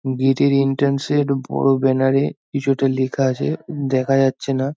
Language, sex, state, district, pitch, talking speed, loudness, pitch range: Bengali, male, West Bengal, North 24 Parganas, 135 Hz, 175 wpm, -19 LUFS, 135-140 Hz